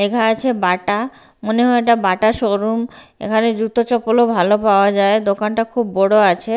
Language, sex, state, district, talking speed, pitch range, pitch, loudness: Bengali, female, Bihar, Katihar, 165 wpm, 200-230 Hz, 220 Hz, -16 LUFS